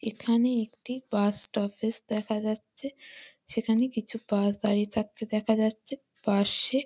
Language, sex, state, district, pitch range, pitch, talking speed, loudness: Bengali, female, West Bengal, Malda, 210-245 Hz, 220 Hz, 120 wpm, -28 LUFS